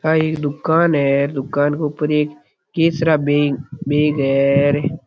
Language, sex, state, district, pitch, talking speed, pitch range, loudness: Rajasthani, male, Rajasthan, Churu, 150 Hz, 155 wpm, 145-155 Hz, -17 LUFS